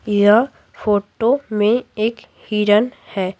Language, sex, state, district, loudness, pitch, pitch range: Hindi, female, Bihar, Patna, -18 LUFS, 215 Hz, 205-230 Hz